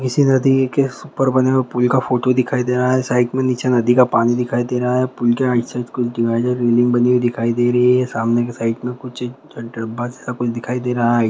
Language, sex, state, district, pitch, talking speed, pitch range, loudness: Hindi, male, Andhra Pradesh, Anantapur, 125 Hz, 265 wpm, 120-125 Hz, -17 LUFS